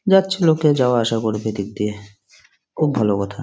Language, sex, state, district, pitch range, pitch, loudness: Bengali, male, West Bengal, Jalpaiguri, 105-150 Hz, 115 Hz, -19 LUFS